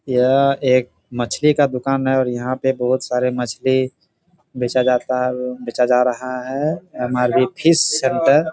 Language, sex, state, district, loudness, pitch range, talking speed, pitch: Hindi, male, Jharkhand, Jamtara, -18 LUFS, 125-135 Hz, 160 wpm, 130 Hz